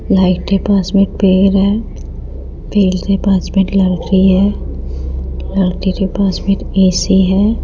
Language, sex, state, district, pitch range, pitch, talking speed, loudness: Hindi, female, Rajasthan, Jaipur, 180-195 Hz, 190 Hz, 165 wpm, -13 LUFS